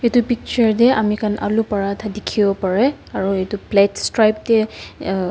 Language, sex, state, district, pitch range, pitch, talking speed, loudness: Nagamese, female, Nagaland, Dimapur, 200-225 Hz, 210 Hz, 170 wpm, -18 LUFS